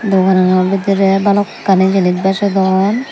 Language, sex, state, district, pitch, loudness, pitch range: Chakma, female, Tripura, Dhalai, 195 Hz, -13 LUFS, 190-200 Hz